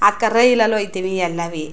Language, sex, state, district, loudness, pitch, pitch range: Kannada, female, Karnataka, Chamarajanagar, -17 LUFS, 200 Hz, 175-220 Hz